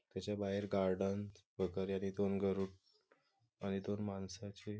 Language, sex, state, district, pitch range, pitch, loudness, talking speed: Marathi, male, Maharashtra, Nagpur, 95-100 Hz, 100 Hz, -41 LUFS, 115 wpm